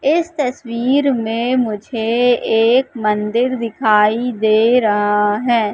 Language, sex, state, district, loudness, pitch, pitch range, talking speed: Hindi, female, Madhya Pradesh, Katni, -16 LUFS, 235 Hz, 215-250 Hz, 105 wpm